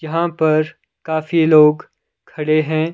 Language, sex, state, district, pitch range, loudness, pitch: Hindi, male, Himachal Pradesh, Shimla, 155-160 Hz, -16 LUFS, 155 Hz